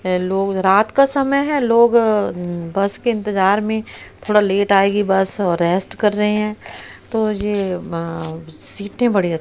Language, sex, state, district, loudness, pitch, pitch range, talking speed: Hindi, female, Haryana, Rohtak, -17 LUFS, 200 Hz, 185-215 Hz, 160 wpm